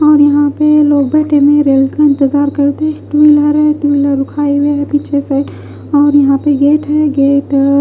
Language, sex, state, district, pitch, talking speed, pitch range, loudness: Hindi, female, Odisha, Khordha, 290 Hz, 205 wpm, 280-295 Hz, -11 LUFS